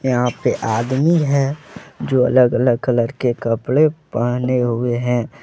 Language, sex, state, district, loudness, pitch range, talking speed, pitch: Hindi, male, Jharkhand, Deoghar, -18 LUFS, 120-135 Hz, 145 wpm, 125 Hz